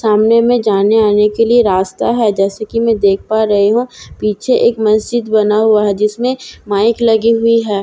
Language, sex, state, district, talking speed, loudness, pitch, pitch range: Hindi, female, Bihar, Katihar, 190 wpm, -12 LUFS, 220 Hz, 210-230 Hz